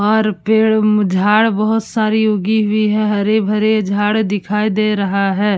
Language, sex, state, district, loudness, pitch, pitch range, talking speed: Hindi, female, Uttar Pradesh, Budaun, -15 LUFS, 215 Hz, 205-220 Hz, 160 wpm